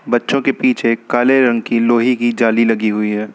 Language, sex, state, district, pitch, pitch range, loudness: Hindi, male, Uttar Pradesh, Lucknow, 115 Hz, 115-120 Hz, -15 LUFS